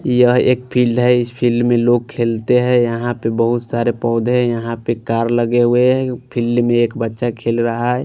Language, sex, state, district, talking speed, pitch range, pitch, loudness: Hindi, male, Punjab, Fazilka, 215 wpm, 115-125 Hz, 120 Hz, -16 LUFS